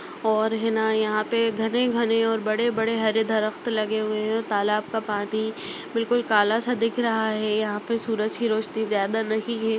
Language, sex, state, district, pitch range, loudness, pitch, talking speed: Bhojpuri, female, Bihar, Saran, 215-230 Hz, -24 LUFS, 220 Hz, 200 wpm